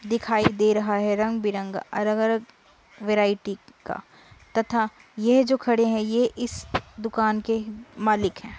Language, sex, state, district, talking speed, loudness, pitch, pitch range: Hindi, female, Uttar Pradesh, Budaun, 140 wpm, -24 LUFS, 220 Hz, 210-230 Hz